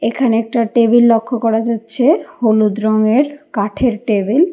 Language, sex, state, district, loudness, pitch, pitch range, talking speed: Bengali, female, Karnataka, Bangalore, -14 LUFS, 230 Hz, 220-250 Hz, 145 wpm